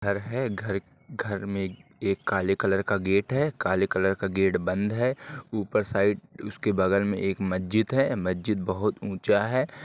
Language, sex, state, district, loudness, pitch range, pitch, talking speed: Hindi, male, Uttar Pradesh, Ghazipur, -27 LUFS, 95-110 Hz, 100 Hz, 175 wpm